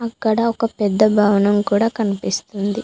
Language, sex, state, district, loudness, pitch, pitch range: Telugu, female, Telangana, Mahabubabad, -18 LUFS, 215 Hz, 205-230 Hz